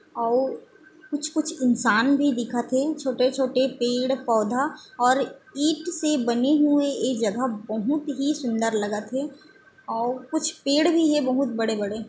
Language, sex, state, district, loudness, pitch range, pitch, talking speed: Chhattisgarhi, female, Chhattisgarh, Bilaspur, -24 LUFS, 240-300 Hz, 265 Hz, 160 wpm